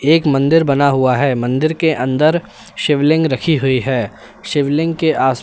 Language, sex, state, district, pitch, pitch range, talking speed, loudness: Hindi, male, Uttar Pradesh, Lalitpur, 145 Hz, 130-160 Hz, 165 wpm, -15 LUFS